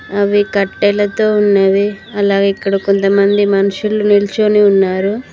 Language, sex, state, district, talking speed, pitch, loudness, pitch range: Telugu, female, Telangana, Mahabubabad, 100 wpm, 200 Hz, -13 LUFS, 195-205 Hz